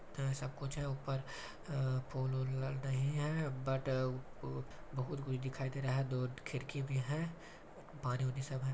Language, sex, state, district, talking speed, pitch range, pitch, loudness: Hindi, male, Chhattisgarh, Balrampur, 170 wpm, 130-140 Hz, 135 Hz, -40 LUFS